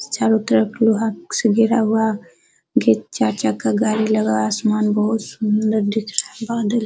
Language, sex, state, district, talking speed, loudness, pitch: Hindi, female, Bihar, Araria, 175 wpm, -19 LUFS, 215 Hz